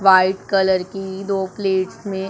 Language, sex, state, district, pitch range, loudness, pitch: Hindi, male, Punjab, Pathankot, 190-195 Hz, -20 LUFS, 190 Hz